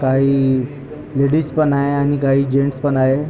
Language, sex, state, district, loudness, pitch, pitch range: Marathi, male, Maharashtra, Pune, -17 LUFS, 140 Hz, 135-145 Hz